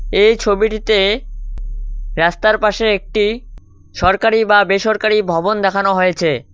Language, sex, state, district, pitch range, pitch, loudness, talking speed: Bengali, male, West Bengal, Cooch Behar, 195-215 Hz, 210 Hz, -15 LUFS, 100 wpm